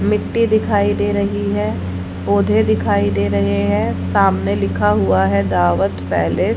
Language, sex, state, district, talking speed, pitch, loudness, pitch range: Hindi, female, Haryana, Charkhi Dadri, 155 wpm, 100 Hz, -17 LUFS, 95-100 Hz